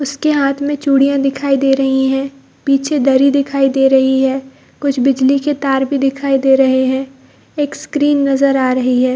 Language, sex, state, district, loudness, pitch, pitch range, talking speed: Hindi, female, Bihar, Jahanabad, -14 LUFS, 275 Hz, 265-280 Hz, 190 wpm